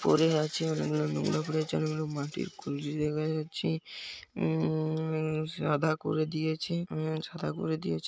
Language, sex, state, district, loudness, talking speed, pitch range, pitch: Bengali, male, West Bengal, Jhargram, -32 LUFS, 140 wpm, 145-155 Hz, 155 Hz